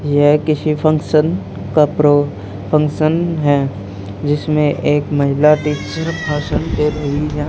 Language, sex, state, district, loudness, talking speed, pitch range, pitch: Hindi, male, Haryana, Charkhi Dadri, -16 LUFS, 120 wpm, 145-150 Hz, 150 Hz